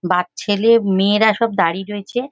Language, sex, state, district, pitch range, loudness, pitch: Bengali, female, West Bengal, Paschim Medinipur, 190-230 Hz, -17 LUFS, 205 Hz